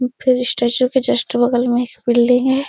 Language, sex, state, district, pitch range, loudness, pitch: Hindi, female, Bihar, Supaul, 240-255 Hz, -16 LUFS, 245 Hz